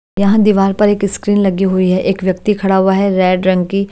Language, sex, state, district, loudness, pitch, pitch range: Hindi, female, Haryana, Jhajjar, -13 LUFS, 195 Hz, 185-200 Hz